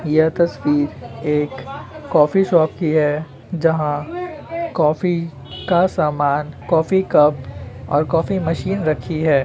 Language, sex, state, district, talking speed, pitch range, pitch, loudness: Hindi, male, Uttar Pradesh, Jalaun, 115 wpm, 145-170 Hz, 155 Hz, -18 LUFS